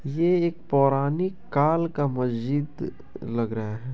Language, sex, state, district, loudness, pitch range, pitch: Maithili, male, Bihar, Begusarai, -25 LUFS, 125-165 Hz, 145 Hz